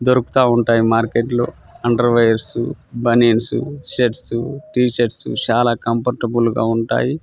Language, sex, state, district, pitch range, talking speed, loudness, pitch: Telugu, male, Telangana, Nalgonda, 115-125 Hz, 110 wpm, -17 LUFS, 120 Hz